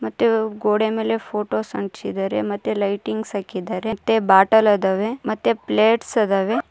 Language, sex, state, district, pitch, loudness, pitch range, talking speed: Kannada, female, Karnataka, Koppal, 210 Hz, -20 LUFS, 185-220 Hz, 125 wpm